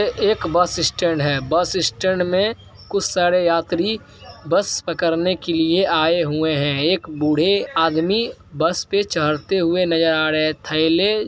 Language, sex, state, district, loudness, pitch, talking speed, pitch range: Hindi, male, Bihar, Araria, -19 LUFS, 170 Hz, 170 wpm, 160-185 Hz